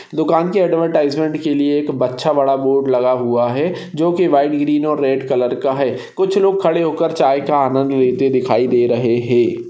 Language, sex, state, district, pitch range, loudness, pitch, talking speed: Hindi, male, Maharashtra, Solapur, 130-165 Hz, -16 LUFS, 145 Hz, 205 wpm